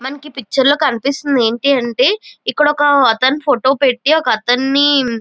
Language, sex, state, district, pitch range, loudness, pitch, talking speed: Telugu, female, Andhra Pradesh, Chittoor, 255-290 Hz, -14 LUFS, 275 Hz, 125 wpm